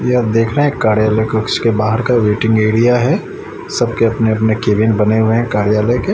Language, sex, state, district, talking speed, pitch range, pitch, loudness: Hindi, male, Chandigarh, Chandigarh, 185 wpm, 110-120 Hz, 110 Hz, -14 LUFS